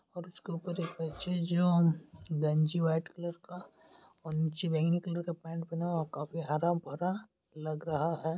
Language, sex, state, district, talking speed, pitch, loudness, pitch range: Hindi, male, Bihar, Bhagalpur, 170 wpm, 165 Hz, -33 LUFS, 160-175 Hz